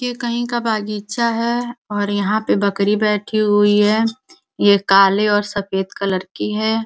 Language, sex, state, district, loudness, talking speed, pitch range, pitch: Hindi, female, Uttar Pradesh, Gorakhpur, -17 LUFS, 165 wpm, 205-225 Hz, 210 Hz